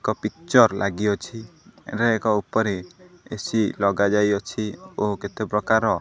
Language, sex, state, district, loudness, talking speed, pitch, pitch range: Odia, male, Odisha, Khordha, -23 LUFS, 130 wpm, 105 Hz, 100-110 Hz